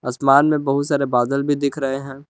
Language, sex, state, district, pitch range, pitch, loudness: Hindi, male, Jharkhand, Palamu, 135-145 Hz, 140 Hz, -19 LUFS